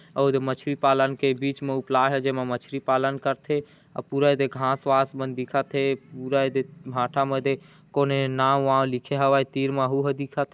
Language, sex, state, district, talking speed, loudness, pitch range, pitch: Hindi, male, Chhattisgarh, Korba, 190 wpm, -24 LUFS, 135-140 Hz, 135 Hz